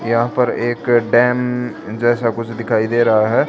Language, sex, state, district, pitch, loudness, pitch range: Hindi, male, Haryana, Charkhi Dadri, 120 Hz, -17 LUFS, 115-120 Hz